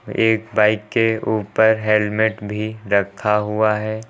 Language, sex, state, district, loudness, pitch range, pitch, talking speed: Hindi, male, Uttar Pradesh, Lucknow, -18 LUFS, 105-110 Hz, 110 Hz, 130 wpm